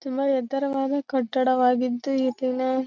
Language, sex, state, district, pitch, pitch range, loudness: Kannada, female, Karnataka, Raichur, 260 Hz, 255-275 Hz, -24 LUFS